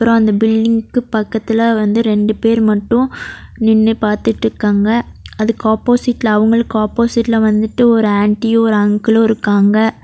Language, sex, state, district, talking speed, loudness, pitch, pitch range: Tamil, female, Tamil Nadu, Nilgiris, 125 wpm, -13 LUFS, 225 Hz, 215-230 Hz